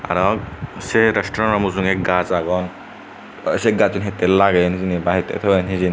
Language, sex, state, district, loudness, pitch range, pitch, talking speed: Chakma, male, Tripura, Dhalai, -18 LUFS, 90-100 Hz, 95 Hz, 170 wpm